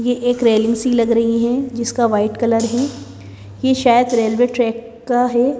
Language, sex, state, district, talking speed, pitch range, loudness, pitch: Hindi, female, Madhya Pradesh, Bhopal, 180 wpm, 230-245 Hz, -16 LUFS, 235 Hz